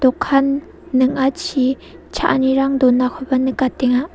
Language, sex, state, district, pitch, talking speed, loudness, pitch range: Garo, female, Meghalaya, South Garo Hills, 265 Hz, 70 wpm, -17 LUFS, 260-275 Hz